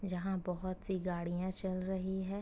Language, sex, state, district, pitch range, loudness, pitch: Hindi, female, Uttar Pradesh, Gorakhpur, 180-190 Hz, -38 LUFS, 185 Hz